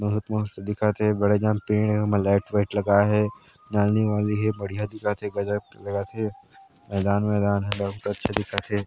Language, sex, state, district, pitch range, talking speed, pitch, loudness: Chhattisgarhi, male, Chhattisgarh, Sarguja, 100-105 Hz, 190 wpm, 105 Hz, -25 LUFS